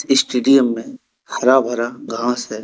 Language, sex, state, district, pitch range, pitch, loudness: Hindi, male, Jharkhand, Deoghar, 120-135 Hz, 125 Hz, -17 LUFS